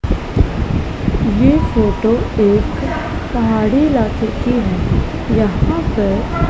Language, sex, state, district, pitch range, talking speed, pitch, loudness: Hindi, female, Punjab, Pathankot, 220-245 Hz, 85 wpm, 225 Hz, -16 LUFS